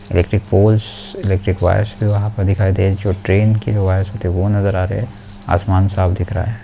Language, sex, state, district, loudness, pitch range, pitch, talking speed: Hindi, male, Bihar, Vaishali, -16 LUFS, 95-105 Hz, 100 Hz, 225 wpm